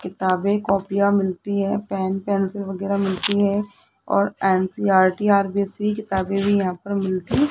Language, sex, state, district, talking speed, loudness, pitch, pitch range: Hindi, female, Rajasthan, Jaipur, 145 wpm, -21 LUFS, 200 Hz, 190-200 Hz